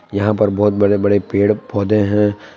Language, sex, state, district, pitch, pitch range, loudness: Hindi, male, Jharkhand, Palamu, 105 Hz, 100-105 Hz, -16 LUFS